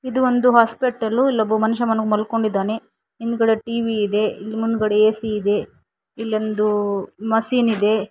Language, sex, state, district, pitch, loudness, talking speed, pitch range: Kannada, female, Karnataka, Koppal, 220 Hz, -20 LUFS, 110 wpm, 215-230 Hz